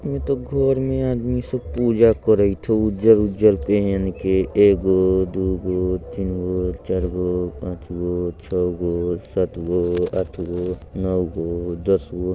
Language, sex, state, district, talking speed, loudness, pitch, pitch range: Bajjika, male, Bihar, Vaishali, 105 wpm, -21 LUFS, 95 Hz, 90-105 Hz